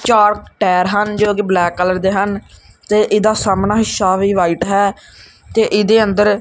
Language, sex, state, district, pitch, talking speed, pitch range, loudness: Punjabi, male, Punjab, Kapurthala, 205 Hz, 180 wpm, 190-210 Hz, -14 LUFS